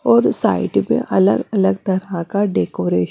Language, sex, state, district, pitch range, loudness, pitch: Hindi, female, Punjab, Fazilka, 115-195 Hz, -17 LUFS, 190 Hz